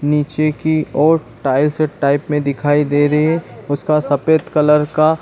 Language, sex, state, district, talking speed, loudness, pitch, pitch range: Hindi, male, Chhattisgarh, Bilaspur, 170 wpm, -16 LUFS, 150 Hz, 145-155 Hz